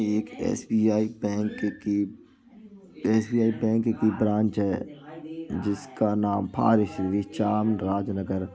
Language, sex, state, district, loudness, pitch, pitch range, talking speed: Hindi, male, Uttar Pradesh, Jalaun, -26 LUFS, 110 Hz, 100-115 Hz, 110 wpm